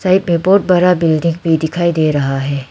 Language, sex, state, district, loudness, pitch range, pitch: Hindi, female, Arunachal Pradesh, Lower Dibang Valley, -14 LUFS, 155-180 Hz, 170 Hz